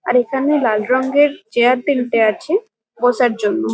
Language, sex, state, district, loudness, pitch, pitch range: Bengali, female, West Bengal, Kolkata, -16 LUFS, 250 Hz, 240-285 Hz